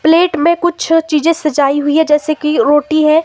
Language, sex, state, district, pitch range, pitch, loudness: Hindi, female, Himachal Pradesh, Shimla, 300-330 Hz, 310 Hz, -12 LUFS